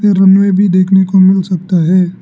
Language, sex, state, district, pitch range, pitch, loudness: Hindi, male, Arunachal Pradesh, Lower Dibang Valley, 185-195 Hz, 190 Hz, -10 LUFS